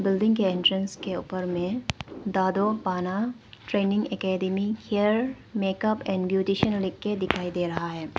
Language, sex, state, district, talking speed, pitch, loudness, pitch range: Hindi, female, Arunachal Pradesh, Papum Pare, 140 wpm, 195 Hz, -27 LUFS, 185-210 Hz